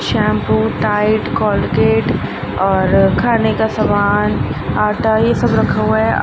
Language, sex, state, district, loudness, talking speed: Hindi, female, Bihar, Gaya, -15 LUFS, 125 wpm